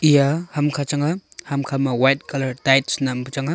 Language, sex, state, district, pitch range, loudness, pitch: Wancho, male, Arunachal Pradesh, Longding, 135-145 Hz, -20 LUFS, 140 Hz